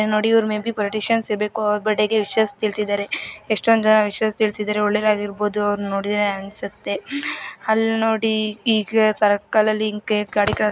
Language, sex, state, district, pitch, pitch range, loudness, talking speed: Kannada, female, Karnataka, Mysore, 215 Hz, 210-220 Hz, -20 LUFS, 125 wpm